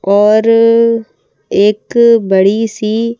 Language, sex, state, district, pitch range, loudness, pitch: Hindi, female, Madhya Pradesh, Bhopal, 210-230 Hz, -11 LUFS, 225 Hz